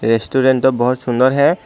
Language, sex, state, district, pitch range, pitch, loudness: Hindi, male, Tripura, Dhalai, 120-130 Hz, 130 Hz, -15 LUFS